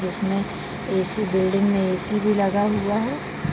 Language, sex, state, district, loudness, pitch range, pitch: Hindi, female, Bihar, Araria, -22 LUFS, 190-210 Hz, 195 Hz